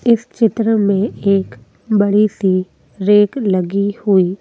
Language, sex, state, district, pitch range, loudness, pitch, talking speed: Hindi, female, Madhya Pradesh, Bhopal, 195-220 Hz, -15 LUFS, 205 Hz, 120 wpm